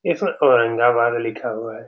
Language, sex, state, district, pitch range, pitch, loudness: Hindi, male, Bihar, Saran, 115-120 Hz, 115 Hz, -19 LUFS